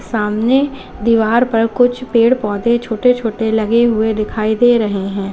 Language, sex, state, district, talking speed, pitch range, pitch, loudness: Hindi, female, Uttar Pradesh, Lalitpur, 155 wpm, 215-240 Hz, 225 Hz, -15 LUFS